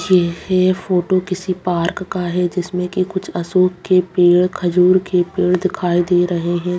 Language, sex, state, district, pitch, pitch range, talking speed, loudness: Hindi, female, Bihar, Bhagalpur, 180 Hz, 175-185 Hz, 160 wpm, -17 LUFS